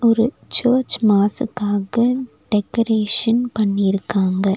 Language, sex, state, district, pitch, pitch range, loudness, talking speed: Tamil, female, Tamil Nadu, Nilgiris, 220 Hz, 200-240 Hz, -18 LUFS, 65 wpm